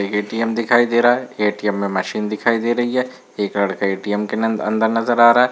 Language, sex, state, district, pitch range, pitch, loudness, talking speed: Hindi, male, Bihar, Darbhanga, 105-120 Hz, 110 Hz, -18 LUFS, 240 wpm